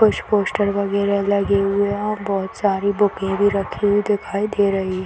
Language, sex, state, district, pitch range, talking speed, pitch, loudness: Hindi, female, Bihar, Madhepura, 195-205 Hz, 215 wpm, 200 Hz, -19 LUFS